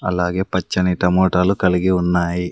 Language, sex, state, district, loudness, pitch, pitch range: Telugu, male, Andhra Pradesh, Sri Satya Sai, -18 LUFS, 90 Hz, 90-95 Hz